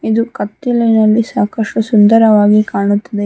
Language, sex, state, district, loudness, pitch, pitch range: Kannada, female, Karnataka, Bangalore, -12 LUFS, 220 Hz, 210-225 Hz